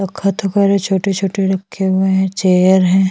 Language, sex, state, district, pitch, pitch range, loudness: Hindi, female, Chhattisgarh, Sukma, 190 Hz, 190-195 Hz, -15 LUFS